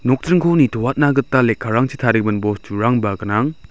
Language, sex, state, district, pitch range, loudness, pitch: Garo, male, Meghalaya, South Garo Hills, 110-140 Hz, -17 LUFS, 120 Hz